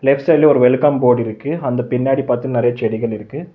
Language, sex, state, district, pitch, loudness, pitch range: Tamil, male, Tamil Nadu, Chennai, 125 Hz, -16 LUFS, 120-145 Hz